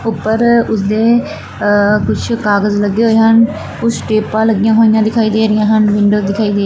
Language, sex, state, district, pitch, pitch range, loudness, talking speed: Punjabi, female, Punjab, Fazilka, 215 Hz, 210-225 Hz, -12 LUFS, 170 wpm